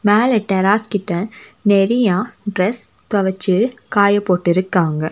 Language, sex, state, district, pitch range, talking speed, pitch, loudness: Tamil, female, Tamil Nadu, Nilgiris, 185-215 Hz, 105 wpm, 200 Hz, -17 LUFS